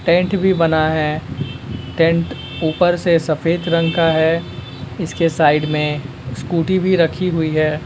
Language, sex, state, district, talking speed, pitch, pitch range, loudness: Hindi, male, Uttar Pradesh, Ghazipur, 145 wpm, 160 Hz, 150-170 Hz, -17 LUFS